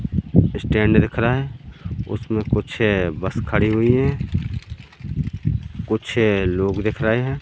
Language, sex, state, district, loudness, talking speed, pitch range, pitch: Hindi, male, Madhya Pradesh, Katni, -20 LUFS, 130 wpm, 105-120 Hz, 110 Hz